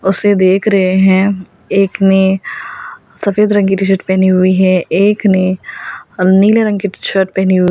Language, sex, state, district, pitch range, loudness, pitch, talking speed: Hindi, female, Delhi, New Delhi, 185-200 Hz, -12 LUFS, 190 Hz, 165 wpm